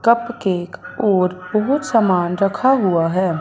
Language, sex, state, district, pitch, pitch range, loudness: Hindi, male, Punjab, Fazilka, 195 Hz, 180-235 Hz, -18 LUFS